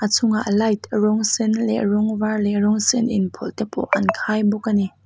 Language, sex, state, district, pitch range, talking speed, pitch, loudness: Mizo, female, Mizoram, Aizawl, 210-220 Hz, 225 wpm, 215 Hz, -20 LUFS